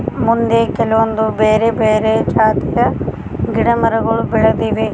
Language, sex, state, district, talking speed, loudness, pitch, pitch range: Kannada, female, Karnataka, Koppal, 85 wpm, -14 LUFS, 220 Hz, 220-230 Hz